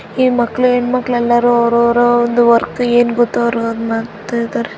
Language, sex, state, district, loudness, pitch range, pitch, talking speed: Kannada, female, Karnataka, Gulbarga, -14 LUFS, 235-240 Hz, 240 Hz, 165 wpm